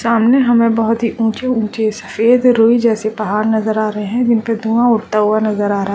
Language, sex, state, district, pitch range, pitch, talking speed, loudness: Hindi, female, Uttarakhand, Uttarkashi, 215-235 Hz, 225 Hz, 220 wpm, -14 LUFS